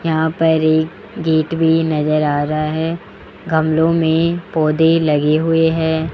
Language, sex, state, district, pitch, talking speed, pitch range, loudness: Hindi, male, Rajasthan, Jaipur, 160 Hz, 145 wpm, 155-165 Hz, -16 LUFS